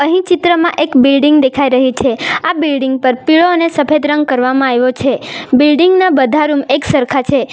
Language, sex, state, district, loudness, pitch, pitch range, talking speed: Gujarati, female, Gujarat, Valsad, -11 LUFS, 285 Hz, 265-320 Hz, 190 wpm